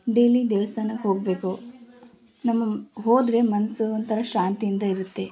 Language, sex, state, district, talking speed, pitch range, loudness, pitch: Kannada, female, Karnataka, Gulbarga, 100 wpm, 200-235 Hz, -24 LUFS, 220 Hz